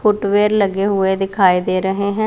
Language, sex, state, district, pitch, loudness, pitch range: Hindi, female, Punjab, Pathankot, 200 Hz, -16 LUFS, 190-205 Hz